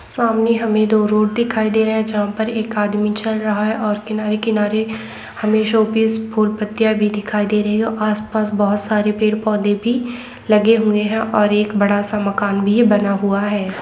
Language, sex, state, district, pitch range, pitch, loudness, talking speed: Hindi, female, Bihar, Saran, 210-220 Hz, 215 Hz, -17 LUFS, 195 wpm